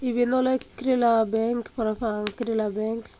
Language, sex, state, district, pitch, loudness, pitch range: Chakma, female, Tripura, Unakoti, 230 Hz, -24 LUFS, 220-245 Hz